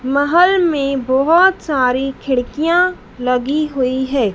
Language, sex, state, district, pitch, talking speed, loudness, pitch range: Hindi, female, Madhya Pradesh, Dhar, 275 Hz, 110 wpm, -15 LUFS, 255-330 Hz